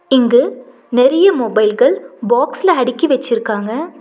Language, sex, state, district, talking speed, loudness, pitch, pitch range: Tamil, female, Tamil Nadu, Nilgiris, 90 wpm, -14 LUFS, 275 Hz, 245-375 Hz